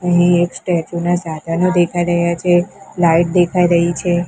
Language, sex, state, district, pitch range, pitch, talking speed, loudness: Gujarati, female, Gujarat, Gandhinagar, 170-175 Hz, 175 Hz, 155 wpm, -15 LUFS